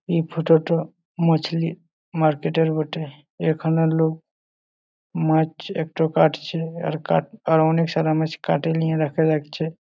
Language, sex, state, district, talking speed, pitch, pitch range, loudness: Bengali, male, West Bengal, Malda, 135 wpm, 160 Hz, 160-165 Hz, -22 LUFS